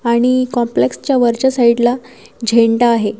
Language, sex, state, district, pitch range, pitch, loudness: Marathi, female, Maharashtra, Washim, 230-250 Hz, 240 Hz, -14 LUFS